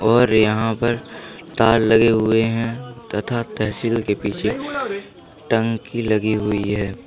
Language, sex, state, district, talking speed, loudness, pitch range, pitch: Hindi, male, Uttar Pradesh, Lalitpur, 125 wpm, -19 LUFS, 110-115 Hz, 115 Hz